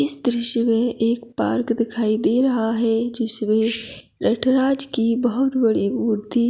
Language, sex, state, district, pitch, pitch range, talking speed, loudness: Hindi, female, Chhattisgarh, Kabirdham, 235 Hz, 225-245 Hz, 145 wpm, -20 LUFS